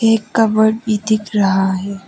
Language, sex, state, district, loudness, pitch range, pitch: Hindi, female, Arunachal Pradesh, Papum Pare, -15 LUFS, 200-220 Hz, 215 Hz